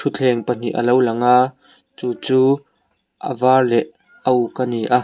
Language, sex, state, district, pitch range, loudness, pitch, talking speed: Mizo, male, Mizoram, Aizawl, 120-130 Hz, -18 LUFS, 125 Hz, 190 wpm